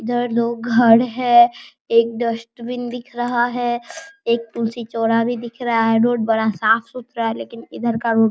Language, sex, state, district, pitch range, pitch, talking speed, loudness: Hindi, male, Bihar, Araria, 230-240 Hz, 235 Hz, 175 wpm, -19 LUFS